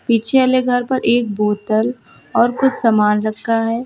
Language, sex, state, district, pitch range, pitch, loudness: Hindi, female, Uttar Pradesh, Lucknow, 215-250 Hz, 230 Hz, -16 LUFS